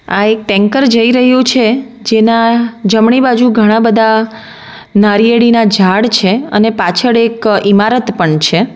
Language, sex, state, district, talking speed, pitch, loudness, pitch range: Gujarati, female, Gujarat, Valsad, 135 wpm, 225 Hz, -9 LUFS, 210-235 Hz